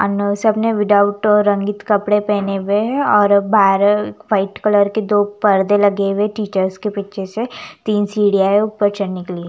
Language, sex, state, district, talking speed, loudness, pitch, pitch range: Hindi, female, Chandigarh, Chandigarh, 175 wpm, -16 LUFS, 205 Hz, 200-210 Hz